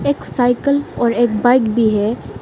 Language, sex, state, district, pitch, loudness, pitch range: Hindi, female, Arunachal Pradesh, Lower Dibang Valley, 240 Hz, -16 LUFS, 225-255 Hz